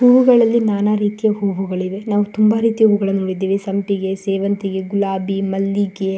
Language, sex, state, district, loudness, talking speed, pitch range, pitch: Kannada, female, Karnataka, Shimoga, -17 LUFS, 145 wpm, 195-210 Hz, 200 Hz